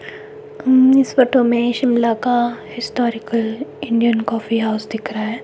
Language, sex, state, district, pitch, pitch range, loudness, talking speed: Hindi, female, Himachal Pradesh, Shimla, 235 Hz, 225-255 Hz, -17 LUFS, 135 wpm